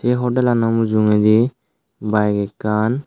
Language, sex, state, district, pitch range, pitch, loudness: Chakma, male, Tripura, Dhalai, 105-120 Hz, 110 Hz, -17 LUFS